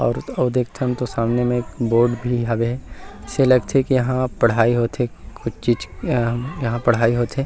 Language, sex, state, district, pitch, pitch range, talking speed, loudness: Chhattisgarhi, male, Chhattisgarh, Rajnandgaon, 120 Hz, 115-125 Hz, 175 wpm, -20 LUFS